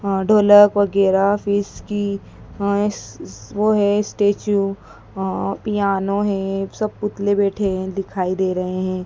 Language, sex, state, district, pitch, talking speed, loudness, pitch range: Hindi, female, Madhya Pradesh, Dhar, 200 Hz, 130 wpm, -19 LUFS, 195-205 Hz